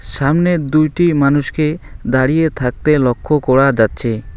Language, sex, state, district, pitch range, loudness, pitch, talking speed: Bengali, male, West Bengal, Alipurduar, 125-155 Hz, -14 LUFS, 140 Hz, 110 wpm